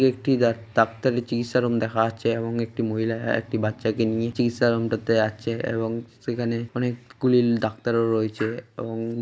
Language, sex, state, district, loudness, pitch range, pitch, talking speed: Bengali, male, West Bengal, Malda, -24 LUFS, 115-120 Hz, 115 Hz, 155 wpm